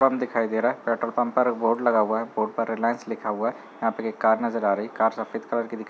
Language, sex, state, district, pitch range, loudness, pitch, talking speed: Hindi, male, Uttar Pradesh, Muzaffarnagar, 110-120 Hz, -25 LUFS, 115 Hz, 315 wpm